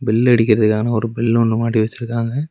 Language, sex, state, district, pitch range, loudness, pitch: Tamil, male, Tamil Nadu, Nilgiris, 110-120 Hz, -17 LUFS, 115 Hz